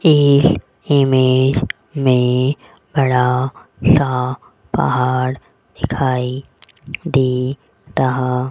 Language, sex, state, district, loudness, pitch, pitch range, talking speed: Hindi, female, Rajasthan, Jaipur, -17 LUFS, 130 Hz, 125-135 Hz, 70 wpm